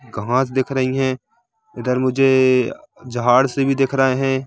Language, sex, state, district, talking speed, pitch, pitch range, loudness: Hindi, male, Jharkhand, Jamtara, 160 wpm, 130 Hz, 125-135 Hz, -18 LUFS